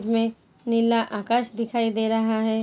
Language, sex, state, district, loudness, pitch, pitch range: Hindi, female, Bihar, Jahanabad, -24 LUFS, 225 Hz, 220-230 Hz